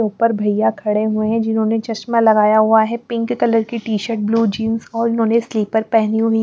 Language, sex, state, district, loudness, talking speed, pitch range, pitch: Hindi, female, Punjab, Pathankot, -17 LUFS, 205 wpm, 215-230 Hz, 225 Hz